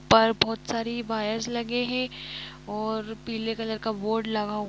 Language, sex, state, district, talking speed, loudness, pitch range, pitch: Hindi, female, Jharkhand, Jamtara, 165 wpm, -28 LUFS, 220-230 Hz, 225 Hz